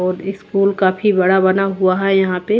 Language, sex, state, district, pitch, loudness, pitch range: Hindi, female, Haryana, Jhajjar, 190 Hz, -15 LUFS, 185-195 Hz